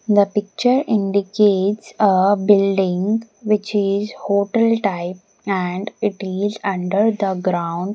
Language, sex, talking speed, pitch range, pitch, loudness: English, female, 115 wpm, 195-210 Hz, 200 Hz, -19 LUFS